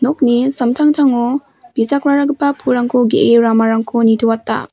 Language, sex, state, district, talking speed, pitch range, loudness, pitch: Garo, female, Meghalaya, West Garo Hills, 90 wpm, 230-280 Hz, -14 LUFS, 250 Hz